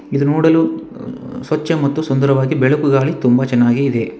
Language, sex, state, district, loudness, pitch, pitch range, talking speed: Kannada, male, Karnataka, Bangalore, -15 LUFS, 140 Hz, 130-155 Hz, 145 wpm